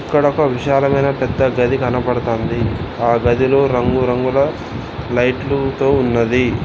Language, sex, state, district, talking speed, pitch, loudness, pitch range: Telugu, male, Telangana, Mahabubabad, 110 wpm, 125 Hz, -16 LUFS, 120-135 Hz